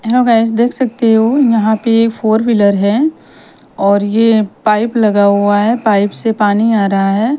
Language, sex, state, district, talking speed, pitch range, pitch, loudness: Hindi, female, Punjab, Kapurthala, 180 wpm, 205-230 Hz, 220 Hz, -12 LUFS